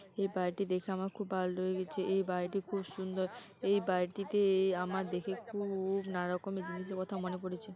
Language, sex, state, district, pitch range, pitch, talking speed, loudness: Bengali, female, West Bengal, Paschim Medinipur, 185-195 Hz, 190 Hz, 185 wpm, -36 LUFS